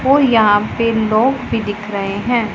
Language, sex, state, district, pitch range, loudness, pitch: Hindi, female, Punjab, Pathankot, 205-240 Hz, -15 LUFS, 220 Hz